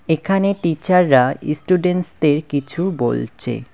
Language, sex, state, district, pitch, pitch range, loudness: Bengali, male, West Bengal, Cooch Behar, 165 Hz, 145-180 Hz, -18 LUFS